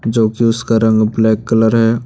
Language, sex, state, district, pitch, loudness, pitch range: Hindi, male, Jharkhand, Deoghar, 115 Hz, -13 LUFS, 110-115 Hz